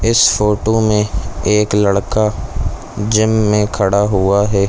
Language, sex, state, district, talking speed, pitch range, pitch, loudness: Hindi, male, Chhattisgarh, Bilaspur, 130 wpm, 100-110 Hz, 105 Hz, -15 LUFS